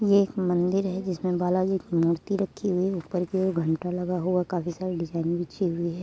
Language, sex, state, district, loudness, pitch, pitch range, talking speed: Hindi, female, Uttar Pradesh, Etah, -27 LUFS, 180 Hz, 175-190 Hz, 270 wpm